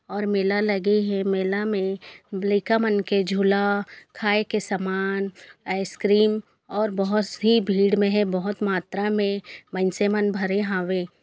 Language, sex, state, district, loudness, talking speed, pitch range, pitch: Chhattisgarhi, female, Chhattisgarh, Raigarh, -23 LUFS, 145 wpm, 195-210 Hz, 200 Hz